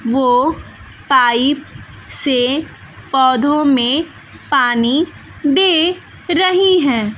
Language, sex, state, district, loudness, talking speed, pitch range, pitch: Hindi, female, Bihar, West Champaran, -14 LUFS, 75 wpm, 250-330 Hz, 280 Hz